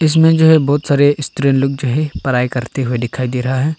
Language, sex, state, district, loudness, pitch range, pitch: Hindi, male, Arunachal Pradesh, Longding, -15 LUFS, 125-155 Hz, 140 Hz